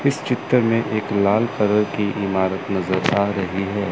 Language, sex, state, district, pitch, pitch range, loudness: Hindi, male, Chandigarh, Chandigarh, 100 Hz, 95-110 Hz, -20 LUFS